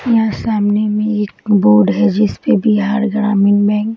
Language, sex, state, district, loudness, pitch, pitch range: Hindi, female, Bihar, Bhagalpur, -14 LUFS, 210 Hz, 200-215 Hz